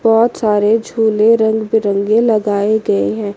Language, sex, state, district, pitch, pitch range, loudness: Hindi, female, Chandigarh, Chandigarh, 220 Hz, 205-225 Hz, -14 LUFS